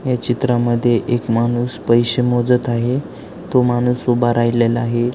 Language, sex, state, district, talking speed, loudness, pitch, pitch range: Marathi, male, Maharashtra, Aurangabad, 140 wpm, -17 LUFS, 120 Hz, 120-125 Hz